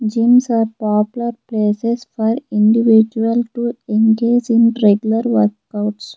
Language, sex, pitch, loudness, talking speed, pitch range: English, female, 225 Hz, -16 LUFS, 105 wpm, 215-235 Hz